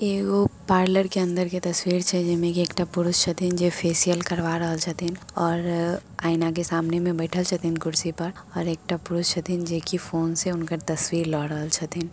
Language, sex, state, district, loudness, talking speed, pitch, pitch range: Maithili, female, Bihar, Samastipur, -25 LUFS, 220 wpm, 170 Hz, 165-180 Hz